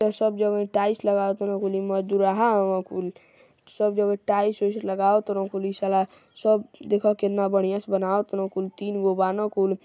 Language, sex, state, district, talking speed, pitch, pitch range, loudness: Hindi, male, Uttar Pradesh, Gorakhpur, 190 wpm, 200 Hz, 195-210 Hz, -24 LUFS